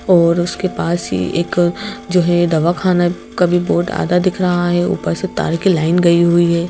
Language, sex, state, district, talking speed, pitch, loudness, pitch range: Hindi, female, Madhya Pradesh, Bhopal, 205 wpm, 175 Hz, -15 LUFS, 170-180 Hz